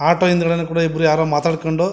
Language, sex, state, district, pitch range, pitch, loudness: Kannada, male, Karnataka, Mysore, 160-170 Hz, 165 Hz, -17 LUFS